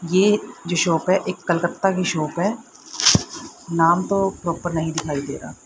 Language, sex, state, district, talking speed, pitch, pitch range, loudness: Hindi, female, Haryana, Rohtak, 170 wpm, 175 Hz, 165-190 Hz, -21 LUFS